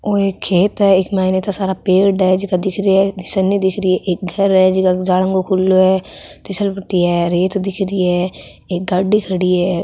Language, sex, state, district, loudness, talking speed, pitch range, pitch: Marwari, female, Rajasthan, Nagaur, -15 LUFS, 225 wpm, 185-195 Hz, 190 Hz